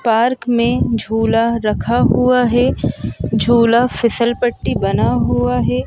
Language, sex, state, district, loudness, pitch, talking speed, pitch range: Hindi, male, Madhya Pradesh, Bhopal, -15 LUFS, 230 Hz, 120 wpm, 215-240 Hz